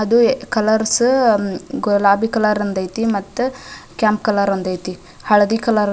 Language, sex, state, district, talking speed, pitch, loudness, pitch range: Kannada, female, Karnataka, Dharwad, 130 wpm, 215 Hz, -17 LUFS, 200-225 Hz